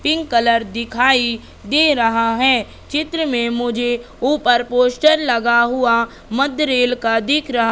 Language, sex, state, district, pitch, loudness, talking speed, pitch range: Hindi, female, Madhya Pradesh, Katni, 245 Hz, -16 LUFS, 145 wpm, 235-275 Hz